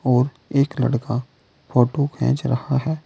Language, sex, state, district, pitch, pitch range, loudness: Hindi, male, Uttar Pradesh, Saharanpur, 135 Hz, 125-145 Hz, -21 LUFS